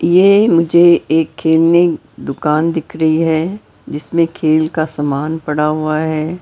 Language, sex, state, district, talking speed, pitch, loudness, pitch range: Hindi, female, Maharashtra, Mumbai Suburban, 140 wpm, 160 Hz, -14 LUFS, 155-165 Hz